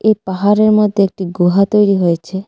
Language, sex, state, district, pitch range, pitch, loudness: Bengali, female, Tripura, West Tripura, 185-210 Hz, 195 Hz, -13 LUFS